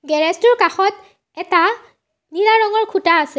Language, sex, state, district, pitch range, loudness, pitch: Assamese, female, Assam, Sonitpur, 335-435 Hz, -15 LUFS, 385 Hz